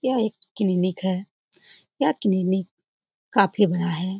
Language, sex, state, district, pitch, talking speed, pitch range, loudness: Hindi, female, Bihar, Lakhisarai, 190 Hz, 130 wpm, 180-205 Hz, -23 LUFS